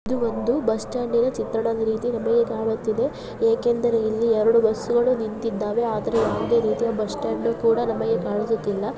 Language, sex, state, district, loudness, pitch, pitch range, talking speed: Kannada, female, Karnataka, Bijapur, -23 LUFS, 230 Hz, 220-235 Hz, 160 wpm